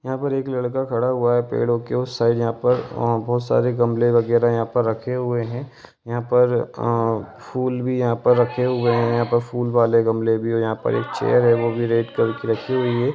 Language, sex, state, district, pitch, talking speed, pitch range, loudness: Hindi, male, Bihar, Lakhisarai, 120 Hz, 200 wpm, 115-125 Hz, -20 LUFS